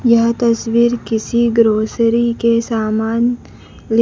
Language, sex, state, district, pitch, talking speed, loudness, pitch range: Hindi, female, Madhya Pradesh, Dhar, 230 Hz, 105 wpm, -15 LUFS, 225-235 Hz